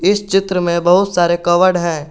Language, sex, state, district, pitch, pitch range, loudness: Hindi, male, Jharkhand, Garhwa, 175 Hz, 170-190 Hz, -14 LUFS